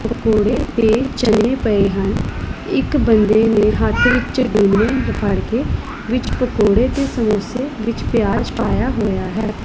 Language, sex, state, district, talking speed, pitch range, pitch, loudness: Punjabi, female, Punjab, Pathankot, 135 wpm, 215-250 Hz, 225 Hz, -17 LUFS